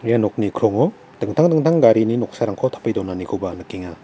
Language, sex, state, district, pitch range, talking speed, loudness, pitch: Garo, male, Meghalaya, West Garo Hills, 95-120 Hz, 150 wpm, -19 LUFS, 110 Hz